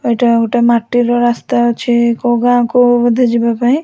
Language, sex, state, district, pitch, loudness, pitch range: Odia, female, Odisha, Khordha, 240 Hz, -12 LUFS, 235-245 Hz